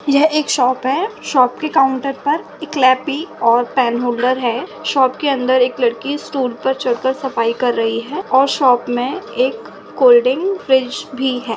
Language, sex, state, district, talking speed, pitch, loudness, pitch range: Hindi, female, Uttar Pradesh, Budaun, 175 wpm, 260 Hz, -16 LUFS, 245-285 Hz